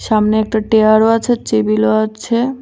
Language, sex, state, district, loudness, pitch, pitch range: Bengali, female, Tripura, West Tripura, -14 LUFS, 220 Hz, 215-230 Hz